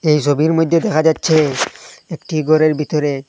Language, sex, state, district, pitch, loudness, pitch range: Bengali, male, Assam, Hailakandi, 155 Hz, -15 LUFS, 145-160 Hz